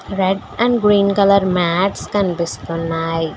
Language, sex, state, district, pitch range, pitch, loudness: Telugu, female, Telangana, Hyderabad, 165-200 Hz, 190 Hz, -17 LUFS